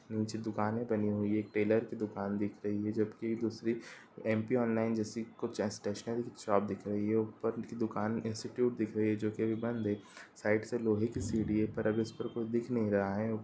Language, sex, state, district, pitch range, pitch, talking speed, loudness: Hindi, male, Bihar, Sitamarhi, 105-115 Hz, 110 Hz, 220 wpm, -35 LUFS